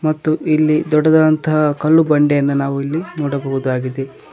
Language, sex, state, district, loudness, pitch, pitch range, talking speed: Kannada, male, Karnataka, Koppal, -16 LUFS, 150 Hz, 140-155 Hz, 110 wpm